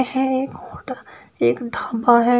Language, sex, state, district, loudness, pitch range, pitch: Hindi, female, Uttar Pradesh, Shamli, -19 LUFS, 235-260 Hz, 245 Hz